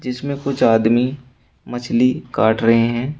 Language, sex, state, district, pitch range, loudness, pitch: Hindi, male, Uttar Pradesh, Shamli, 115-140 Hz, -17 LUFS, 125 Hz